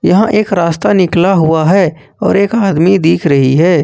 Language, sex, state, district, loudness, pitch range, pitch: Hindi, male, Jharkhand, Ranchi, -11 LUFS, 160-195 Hz, 175 Hz